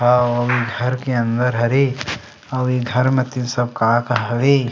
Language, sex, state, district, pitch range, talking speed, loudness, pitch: Chhattisgarhi, male, Chhattisgarh, Sarguja, 120-125 Hz, 180 wpm, -18 LUFS, 125 Hz